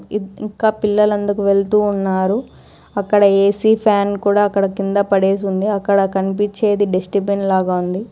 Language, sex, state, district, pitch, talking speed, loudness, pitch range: Telugu, female, Telangana, Hyderabad, 200 Hz, 140 wpm, -16 LUFS, 195-210 Hz